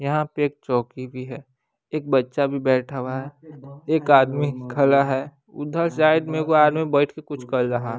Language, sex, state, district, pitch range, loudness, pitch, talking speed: Hindi, male, Bihar, West Champaran, 130-150 Hz, -21 LUFS, 140 Hz, 205 wpm